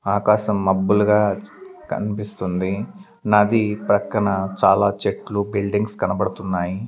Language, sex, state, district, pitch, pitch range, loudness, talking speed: Telugu, male, Andhra Pradesh, Sri Satya Sai, 105 Hz, 100-105 Hz, -20 LUFS, 85 wpm